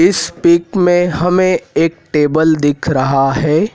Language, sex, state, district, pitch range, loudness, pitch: Hindi, male, Madhya Pradesh, Dhar, 150-180 Hz, -13 LUFS, 165 Hz